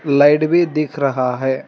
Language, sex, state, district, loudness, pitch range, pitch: Hindi, male, Telangana, Hyderabad, -16 LUFS, 135-155 Hz, 145 Hz